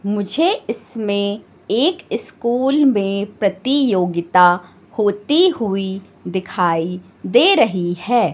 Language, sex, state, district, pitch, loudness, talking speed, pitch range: Hindi, female, Madhya Pradesh, Katni, 205 Hz, -17 LUFS, 85 wpm, 185-245 Hz